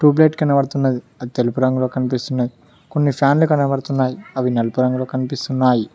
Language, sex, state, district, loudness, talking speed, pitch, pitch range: Telugu, male, Telangana, Mahabubabad, -18 LUFS, 140 wpm, 130 Hz, 125-140 Hz